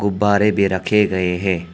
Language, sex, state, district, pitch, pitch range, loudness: Hindi, male, Arunachal Pradesh, Lower Dibang Valley, 100 Hz, 95-105 Hz, -17 LUFS